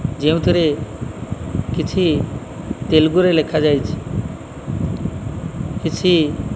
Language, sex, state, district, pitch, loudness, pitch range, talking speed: Odia, male, Odisha, Malkangiri, 150 Hz, -19 LUFS, 115-160 Hz, 55 wpm